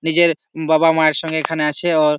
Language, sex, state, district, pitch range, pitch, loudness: Bengali, male, West Bengal, Malda, 155-165 Hz, 160 Hz, -17 LUFS